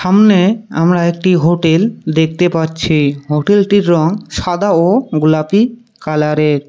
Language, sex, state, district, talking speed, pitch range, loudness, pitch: Bengali, male, West Bengal, Cooch Behar, 110 wpm, 155-200 Hz, -13 LUFS, 170 Hz